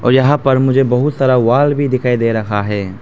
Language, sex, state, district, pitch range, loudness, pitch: Hindi, male, Arunachal Pradesh, Papum Pare, 115-135 Hz, -13 LUFS, 130 Hz